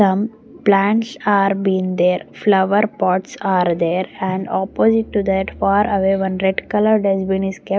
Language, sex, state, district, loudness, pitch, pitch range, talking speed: English, female, Maharashtra, Gondia, -17 LUFS, 195 Hz, 190-205 Hz, 160 wpm